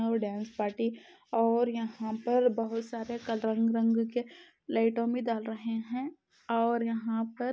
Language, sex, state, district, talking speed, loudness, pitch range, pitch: Hindi, female, Uttar Pradesh, Budaun, 165 wpm, -31 LUFS, 225-235 Hz, 230 Hz